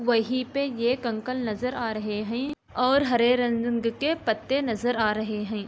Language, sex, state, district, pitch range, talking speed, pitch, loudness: Hindi, female, Uttar Pradesh, Jalaun, 220-255 Hz, 180 wpm, 240 Hz, -26 LUFS